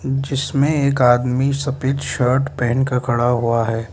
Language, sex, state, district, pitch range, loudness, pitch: Hindi, male, Mizoram, Aizawl, 120-140 Hz, -18 LUFS, 130 Hz